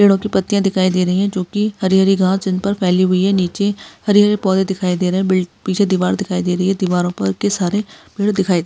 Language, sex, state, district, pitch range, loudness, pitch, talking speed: Hindi, female, Maharashtra, Nagpur, 180-200 Hz, -16 LUFS, 190 Hz, 235 wpm